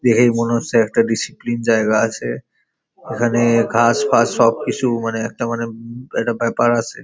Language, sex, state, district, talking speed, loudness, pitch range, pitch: Bengali, male, West Bengal, Paschim Medinipur, 155 wpm, -17 LUFS, 115-120 Hz, 115 Hz